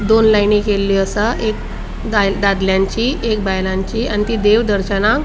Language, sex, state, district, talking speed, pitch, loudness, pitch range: Konkani, female, Goa, North and South Goa, 150 wpm, 210 Hz, -16 LUFS, 195-220 Hz